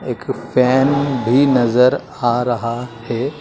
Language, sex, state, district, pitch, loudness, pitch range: Hindi, male, Madhya Pradesh, Dhar, 125 Hz, -16 LUFS, 120-135 Hz